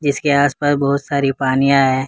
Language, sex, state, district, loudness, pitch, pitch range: Hindi, male, Jharkhand, Ranchi, -16 LUFS, 140 Hz, 135-145 Hz